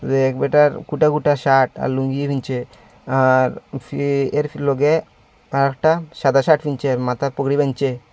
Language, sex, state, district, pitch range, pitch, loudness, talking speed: Bengali, female, Tripura, Unakoti, 130-145 Hz, 140 Hz, -18 LUFS, 140 wpm